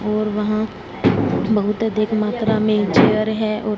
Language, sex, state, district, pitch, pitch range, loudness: Hindi, female, Punjab, Fazilka, 215 Hz, 210-220 Hz, -19 LUFS